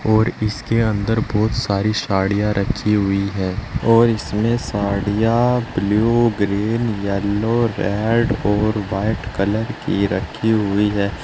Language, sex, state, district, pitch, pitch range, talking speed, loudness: Hindi, male, Uttar Pradesh, Saharanpur, 105 Hz, 100-115 Hz, 125 wpm, -19 LUFS